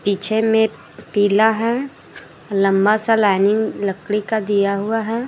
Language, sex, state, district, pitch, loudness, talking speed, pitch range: Hindi, female, Jharkhand, Garhwa, 210 Hz, -18 LUFS, 135 wpm, 200-225 Hz